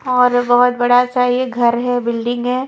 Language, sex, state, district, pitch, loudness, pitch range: Hindi, female, Punjab, Pathankot, 245 Hz, -15 LUFS, 245-250 Hz